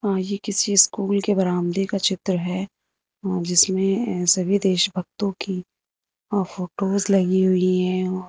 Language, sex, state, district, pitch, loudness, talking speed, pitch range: Hindi, female, Uttar Pradesh, Lucknow, 190 Hz, -21 LUFS, 140 wpm, 185-200 Hz